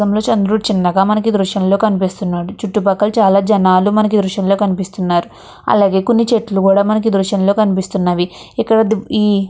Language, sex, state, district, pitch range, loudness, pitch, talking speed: Telugu, female, Andhra Pradesh, Chittoor, 190-215 Hz, -14 LUFS, 200 Hz, 135 wpm